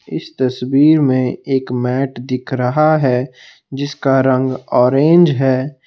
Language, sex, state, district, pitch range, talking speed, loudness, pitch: Hindi, male, Assam, Kamrup Metropolitan, 125-140 Hz, 125 wpm, -15 LUFS, 130 Hz